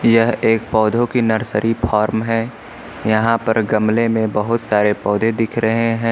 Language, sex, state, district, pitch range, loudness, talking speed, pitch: Hindi, male, Uttar Pradesh, Lucknow, 110-115 Hz, -17 LUFS, 165 wpm, 115 Hz